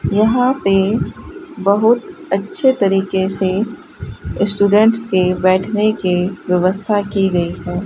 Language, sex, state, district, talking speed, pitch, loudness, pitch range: Hindi, female, Rajasthan, Bikaner, 105 wpm, 200 Hz, -16 LUFS, 185-215 Hz